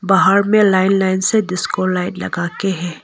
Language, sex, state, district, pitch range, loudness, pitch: Hindi, female, Arunachal Pradesh, Longding, 185-195 Hz, -16 LUFS, 190 Hz